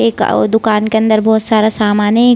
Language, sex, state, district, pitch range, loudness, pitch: Hindi, female, Bihar, Saran, 210-220 Hz, -12 LUFS, 215 Hz